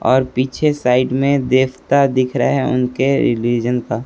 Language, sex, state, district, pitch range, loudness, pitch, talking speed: Hindi, male, Chhattisgarh, Raipur, 125-135 Hz, -16 LUFS, 130 Hz, 150 wpm